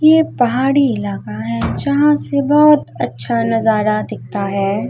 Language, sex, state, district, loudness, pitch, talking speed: Hindi, female, Uttar Pradesh, Muzaffarnagar, -15 LUFS, 215 Hz, 135 wpm